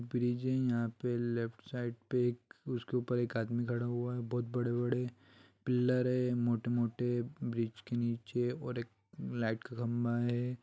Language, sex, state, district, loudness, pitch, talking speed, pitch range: Hindi, male, Bihar, East Champaran, -36 LUFS, 120 Hz, 175 wpm, 120-125 Hz